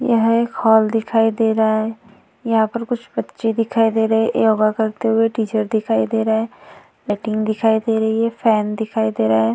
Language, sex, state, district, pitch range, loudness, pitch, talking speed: Hindi, female, Uttar Pradesh, Varanasi, 220-225 Hz, -18 LUFS, 220 Hz, 200 wpm